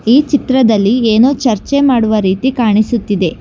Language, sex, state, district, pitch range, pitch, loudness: Kannada, female, Karnataka, Bangalore, 215-265 Hz, 235 Hz, -12 LUFS